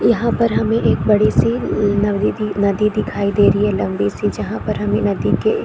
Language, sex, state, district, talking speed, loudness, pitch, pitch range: Hindi, female, Chhattisgarh, Korba, 210 wpm, -17 LUFS, 205 Hz, 200-215 Hz